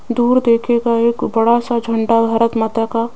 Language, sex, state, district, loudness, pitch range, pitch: Hindi, female, Rajasthan, Jaipur, -15 LUFS, 230-235 Hz, 230 Hz